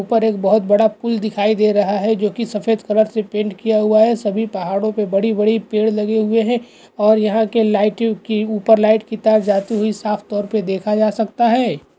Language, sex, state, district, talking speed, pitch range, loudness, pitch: Hindi, male, Uttar Pradesh, Hamirpur, 220 wpm, 210-220 Hz, -17 LUFS, 215 Hz